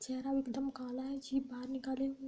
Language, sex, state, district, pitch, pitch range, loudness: Hindi, female, Uttar Pradesh, Deoria, 265 Hz, 260-270 Hz, -39 LUFS